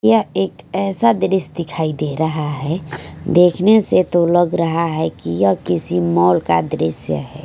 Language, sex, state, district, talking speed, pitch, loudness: Hindi, female, Haryana, Charkhi Dadri, 170 wpm, 150 Hz, -17 LUFS